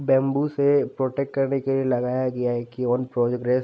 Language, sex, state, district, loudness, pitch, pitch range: Hindi, male, Uttar Pradesh, Jalaun, -23 LUFS, 130 Hz, 125-135 Hz